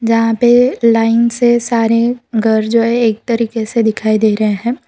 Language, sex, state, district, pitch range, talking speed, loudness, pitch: Hindi, female, Gujarat, Valsad, 225-235 Hz, 185 wpm, -13 LUFS, 230 Hz